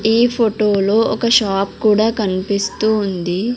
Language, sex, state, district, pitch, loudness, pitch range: Telugu, female, Andhra Pradesh, Sri Satya Sai, 215 Hz, -16 LUFS, 195-225 Hz